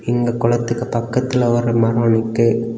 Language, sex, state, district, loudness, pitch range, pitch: Tamil, male, Tamil Nadu, Kanyakumari, -17 LUFS, 115-120 Hz, 115 Hz